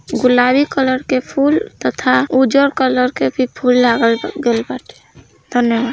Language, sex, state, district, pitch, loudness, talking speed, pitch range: Hindi, female, Bihar, East Champaran, 255 Hz, -15 LUFS, 100 wpm, 245-275 Hz